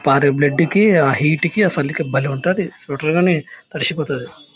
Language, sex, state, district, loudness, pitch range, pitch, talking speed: Telugu, male, Andhra Pradesh, Anantapur, -17 LUFS, 140-175 Hz, 155 Hz, 170 wpm